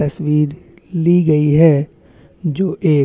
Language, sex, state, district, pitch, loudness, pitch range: Hindi, male, Chhattisgarh, Bastar, 155 Hz, -15 LUFS, 150-170 Hz